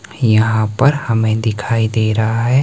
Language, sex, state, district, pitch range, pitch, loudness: Hindi, male, Himachal Pradesh, Shimla, 110-120 Hz, 110 Hz, -15 LUFS